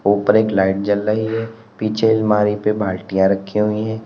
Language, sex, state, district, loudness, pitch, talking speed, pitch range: Hindi, male, Uttar Pradesh, Lalitpur, -18 LUFS, 105 Hz, 190 wpm, 100-110 Hz